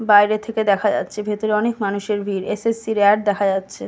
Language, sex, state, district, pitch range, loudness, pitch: Bengali, female, West Bengal, Kolkata, 200-215 Hz, -19 LUFS, 205 Hz